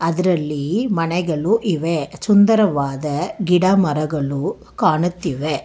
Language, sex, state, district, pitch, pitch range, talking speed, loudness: Kannada, female, Karnataka, Bangalore, 170 Hz, 150-190 Hz, 75 wpm, -18 LUFS